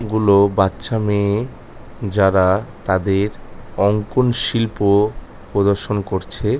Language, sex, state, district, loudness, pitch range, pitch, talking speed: Bengali, male, West Bengal, North 24 Parganas, -18 LUFS, 100-110 Hz, 100 Hz, 80 wpm